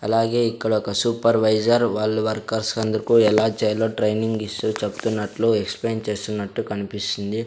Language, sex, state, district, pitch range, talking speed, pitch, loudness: Telugu, male, Andhra Pradesh, Sri Satya Sai, 105-115 Hz, 110 wpm, 110 Hz, -22 LUFS